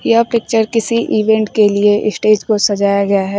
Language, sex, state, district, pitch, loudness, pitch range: Hindi, female, Uttar Pradesh, Shamli, 215 Hz, -13 LUFS, 205-225 Hz